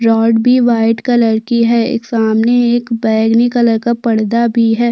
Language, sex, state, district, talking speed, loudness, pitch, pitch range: Hindi, female, Chhattisgarh, Sukma, 180 wpm, -12 LUFS, 230 Hz, 225-240 Hz